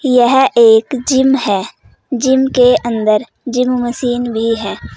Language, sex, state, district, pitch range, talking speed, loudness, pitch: Hindi, female, Uttar Pradesh, Saharanpur, 230-260 Hz, 135 wpm, -13 LUFS, 245 Hz